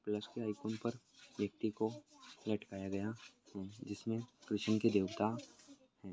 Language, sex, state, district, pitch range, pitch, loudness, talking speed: Hindi, male, Maharashtra, Nagpur, 105-115 Hz, 110 Hz, -40 LUFS, 135 wpm